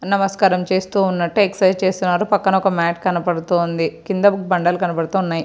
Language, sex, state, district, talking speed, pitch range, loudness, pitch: Telugu, female, Andhra Pradesh, Srikakulam, 165 wpm, 175-195 Hz, -18 LUFS, 185 Hz